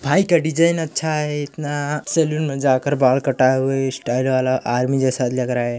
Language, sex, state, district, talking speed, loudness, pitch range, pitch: Hindi, male, Chhattisgarh, Korba, 205 wpm, -19 LUFS, 130-155 Hz, 135 Hz